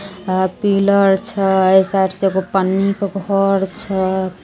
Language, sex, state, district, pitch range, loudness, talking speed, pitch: Maithili, female, Bihar, Samastipur, 190-200 Hz, -16 LUFS, 135 wpm, 195 Hz